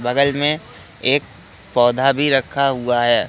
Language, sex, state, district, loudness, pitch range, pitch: Hindi, male, Madhya Pradesh, Katni, -17 LUFS, 120-140 Hz, 130 Hz